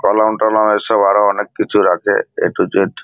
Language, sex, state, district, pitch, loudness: Bengali, male, West Bengal, Purulia, 110 Hz, -14 LUFS